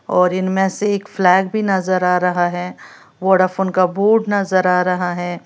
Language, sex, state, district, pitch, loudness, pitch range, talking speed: Hindi, female, Uttar Pradesh, Lalitpur, 185 Hz, -17 LUFS, 180-195 Hz, 185 wpm